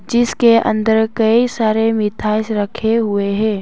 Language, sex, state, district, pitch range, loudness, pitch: Hindi, female, Arunachal Pradesh, Papum Pare, 215-230 Hz, -15 LUFS, 220 Hz